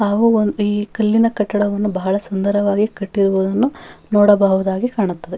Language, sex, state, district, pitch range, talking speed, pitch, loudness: Kannada, female, Karnataka, Bellary, 195-210 Hz, 110 wpm, 205 Hz, -17 LUFS